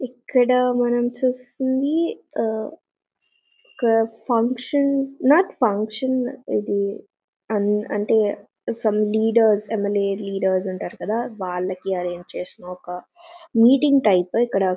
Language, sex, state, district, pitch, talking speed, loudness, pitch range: Telugu, female, Telangana, Nalgonda, 225 Hz, 95 wpm, -21 LUFS, 200-255 Hz